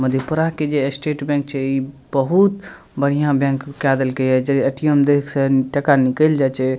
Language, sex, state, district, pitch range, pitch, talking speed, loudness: Maithili, male, Bihar, Madhepura, 135-145 Hz, 140 Hz, 175 wpm, -18 LUFS